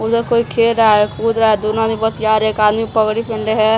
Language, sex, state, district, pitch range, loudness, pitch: Hindi, female, Bihar, Patna, 215-225 Hz, -15 LUFS, 220 Hz